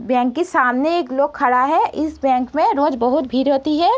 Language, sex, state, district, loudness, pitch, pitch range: Hindi, female, Bihar, East Champaran, -17 LUFS, 285 Hz, 255-310 Hz